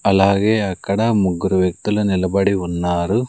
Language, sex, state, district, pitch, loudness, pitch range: Telugu, male, Andhra Pradesh, Sri Satya Sai, 100 Hz, -18 LUFS, 95-100 Hz